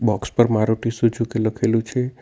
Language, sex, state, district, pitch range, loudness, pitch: Gujarati, male, Gujarat, Navsari, 110-120 Hz, -20 LUFS, 115 Hz